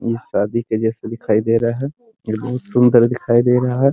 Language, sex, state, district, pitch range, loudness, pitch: Hindi, male, Bihar, Muzaffarpur, 115-125 Hz, -17 LUFS, 120 Hz